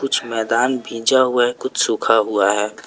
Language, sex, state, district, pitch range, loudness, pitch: Hindi, male, Jharkhand, Palamu, 110-130 Hz, -18 LUFS, 115 Hz